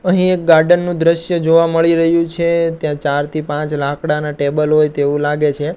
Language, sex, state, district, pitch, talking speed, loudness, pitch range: Gujarati, male, Gujarat, Gandhinagar, 155 Hz, 200 wpm, -15 LUFS, 150-170 Hz